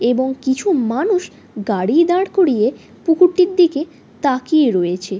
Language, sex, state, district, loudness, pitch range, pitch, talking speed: Bengali, female, West Bengal, Paschim Medinipur, -16 LUFS, 240-355 Hz, 285 Hz, 115 wpm